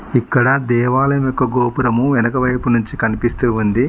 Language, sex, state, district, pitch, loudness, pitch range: Telugu, male, Telangana, Mahabubabad, 125 Hz, -16 LUFS, 120-130 Hz